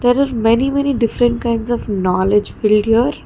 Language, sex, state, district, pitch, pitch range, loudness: English, female, Karnataka, Bangalore, 235 Hz, 210-245 Hz, -16 LUFS